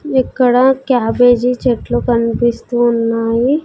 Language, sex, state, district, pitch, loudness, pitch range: Telugu, female, Andhra Pradesh, Sri Satya Sai, 245 Hz, -14 LUFS, 235-255 Hz